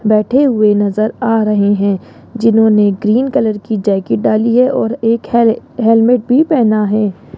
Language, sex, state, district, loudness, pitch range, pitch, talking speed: Hindi, female, Rajasthan, Jaipur, -12 LUFS, 210-235 Hz, 220 Hz, 160 wpm